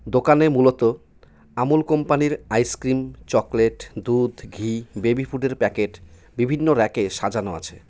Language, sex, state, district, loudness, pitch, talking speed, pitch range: Bengali, male, West Bengal, Cooch Behar, -21 LUFS, 120 Hz, 115 wpm, 105-130 Hz